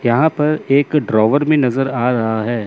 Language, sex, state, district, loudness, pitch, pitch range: Hindi, male, Chandigarh, Chandigarh, -15 LUFS, 135 Hz, 120-150 Hz